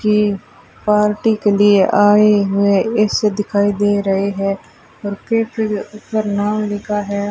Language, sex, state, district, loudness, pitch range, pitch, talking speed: Hindi, female, Rajasthan, Bikaner, -16 LUFS, 200-210 Hz, 205 Hz, 140 wpm